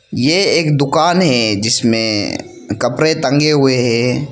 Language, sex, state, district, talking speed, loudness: Hindi, male, Arunachal Pradesh, Lower Dibang Valley, 125 wpm, -13 LUFS